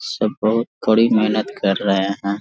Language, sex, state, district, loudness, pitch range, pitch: Hindi, male, Jharkhand, Sahebganj, -18 LUFS, 100-110 Hz, 105 Hz